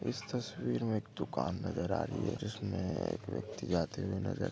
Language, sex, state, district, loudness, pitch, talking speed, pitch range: Hindi, male, Maharashtra, Dhule, -37 LUFS, 105 Hz, 200 wpm, 90-110 Hz